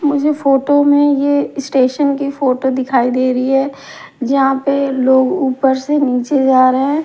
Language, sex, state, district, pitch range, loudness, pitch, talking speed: Hindi, female, Maharashtra, Mumbai Suburban, 260-285 Hz, -14 LUFS, 270 Hz, 170 wpm